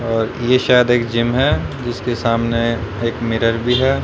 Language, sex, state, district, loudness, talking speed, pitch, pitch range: Hindi, male, Haryana, Rohtak, -17 LUFS, 180 wpm, 115 Hz, 115-125 Hz